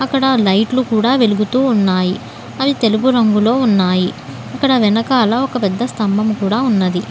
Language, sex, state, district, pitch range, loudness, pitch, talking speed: Telugu, female, Telangana, Hyderabad, 205-255 Hz, -14 LUFS, 225 Hz, 135 wpm